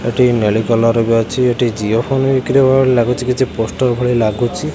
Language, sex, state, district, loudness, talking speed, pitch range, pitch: Odia, male, Odisha, Khordha, -14 LUFS, 175 wpm, 115-130 Hz, 120 Hz